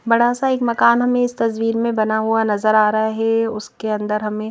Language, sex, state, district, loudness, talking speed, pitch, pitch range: Hindi, female, Madhya Pradesh, Bhopal, -18 LUFS, 225 wpm, 225 Hz, 215-235 Hz